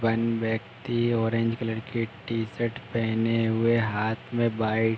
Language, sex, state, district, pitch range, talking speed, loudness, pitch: Hindi, male, Uttar Pradesh, Hamirpur, 110-115 Hz, 145 wpm, -27 LUFS, 115 Hz